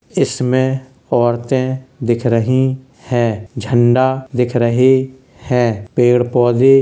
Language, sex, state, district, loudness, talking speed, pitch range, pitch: Hindi, male, Uttar Pradesh, Jalaun, -15 LUFS, 105 wpm, 120-130 Hz, 125 Hz